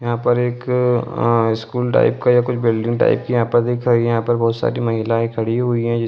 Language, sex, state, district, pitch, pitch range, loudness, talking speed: Hindi, male, Bihar, Lakhisarai, 120 Hz, 115-120 Hz, -18 LUFS, 225 wpm